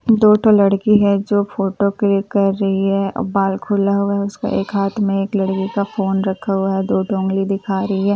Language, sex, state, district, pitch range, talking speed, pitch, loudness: Hindi, female, Bihar, Katihar, 195-205 Hz, 255 wpm, 200 Hz, -17 LUFS